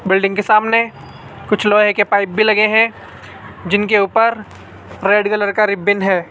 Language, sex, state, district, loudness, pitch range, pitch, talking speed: Hindi, male, Rajasthan, Jaipur, -14 LUFS, 195-215 Hz, 205 Hz, 160 wpm